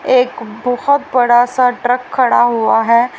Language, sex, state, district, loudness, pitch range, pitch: Hindi, female, Haryana, Rohtak, -13 LUFS, 240-255 Hz, 245 Hz